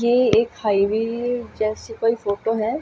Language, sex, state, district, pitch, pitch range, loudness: Hindi, female, Haryana, Jhajjar, 225 Hz, 215-235 Hz, -21 LUFS